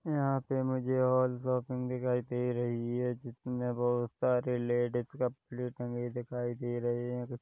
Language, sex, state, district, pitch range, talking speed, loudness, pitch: Hindi, male, Chhattisgarh, Rajnandgaon, 120-125 Hz, 155 wpm, -33 LUFS, 125 Hz